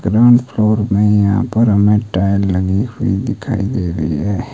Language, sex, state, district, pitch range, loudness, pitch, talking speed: Hindi, male, Himachal Pradesh, Shimla, 100-115 Hz, -15 LUFS, 105 Hz, 170 wpm